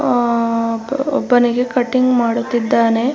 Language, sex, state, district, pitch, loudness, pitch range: Kannada, female, Karnataka, Mysore, 240 Hz, -16 LUFS, 230-255 Hz